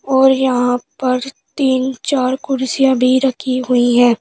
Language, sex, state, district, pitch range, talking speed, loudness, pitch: Hindi, female, Uttar Pradesh, Shamli, 250-265 Hz, 145 wpm, -15 LUFS, 260 Hz